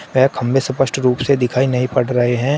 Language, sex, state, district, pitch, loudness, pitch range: Hindi, male, Uttar Pradesh, Shamli, 130 Hz, -16 LUFS, 125-135 Hz